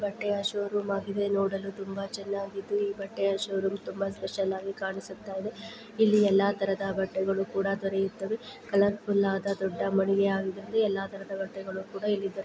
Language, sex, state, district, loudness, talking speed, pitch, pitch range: Kannada, female, Karnataka, Dharwad, -29 LUFS, 165 wpm, 195 Hz, 195-200 Hz